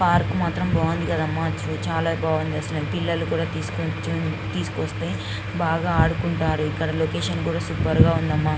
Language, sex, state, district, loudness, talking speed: Telugu, female, Andhra Pradesh, Guntur, -23 LUFS, 120 wpm